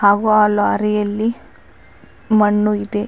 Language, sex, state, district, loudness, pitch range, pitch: Kannada, female, Karnataka, Bidar, -16 LUFS, 205-215 Hz, 210 Hz